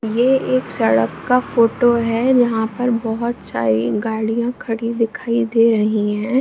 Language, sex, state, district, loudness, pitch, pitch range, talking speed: Hindi, female, Bihar, Jamui, -18 LUFS, 230 Hz, 220-240 Hz, 150 wpm